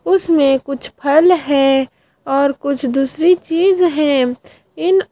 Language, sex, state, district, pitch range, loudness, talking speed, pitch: Hindi, female, Bihar, Kaimur, 270-350 Hz, -15 LUFS, 115 wpm, 285 Hz